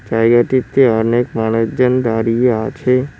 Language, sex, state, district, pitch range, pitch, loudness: Bengali, male, West Bengal, Cooch Behar, 115-130 Hz, 120 Hz, -15 LUFS